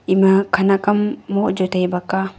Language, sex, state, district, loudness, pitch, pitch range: Wancho, female, Arunachal Pradesh, Longding, -18 LUFS, 190 Hz, 185-200 Hz